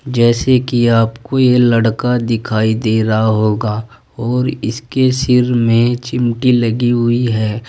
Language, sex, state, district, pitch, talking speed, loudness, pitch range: Hindi, male, Uttar Pradesh, Saharanpur, 120 Hz, 135 wpm, -14 LUFS, 115-125 Hz